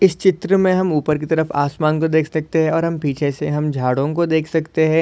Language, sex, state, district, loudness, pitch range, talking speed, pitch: Hindi, male, Maharashtra, Solapur, -18 LUFS, 150-165 Hz, 265 wpm, 160 Hz